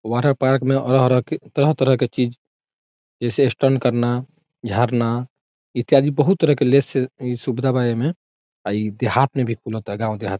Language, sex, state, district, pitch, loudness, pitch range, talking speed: Bhojpuri, male, Bihar, Saran, 125 Hz, -20 LUFS, 120-140 Hz, 185 wpm